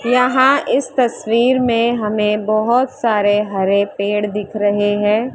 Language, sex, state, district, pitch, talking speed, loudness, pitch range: Hindi, female, Maharashtra, Mumbai Suburban, 215 Hz, 135 wpm, -16 LUFS, 205-250 Hz